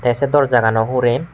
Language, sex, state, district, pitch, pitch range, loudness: Chakma, male, Tripura, West Tripura, 125 Hz, 120-140 Hz, -16 LUFS